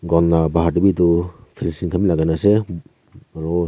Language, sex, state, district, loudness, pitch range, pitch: Nagamese, male, Nagaland, Kohima, -18 LUFS, 85-90 Hz, 85 Hz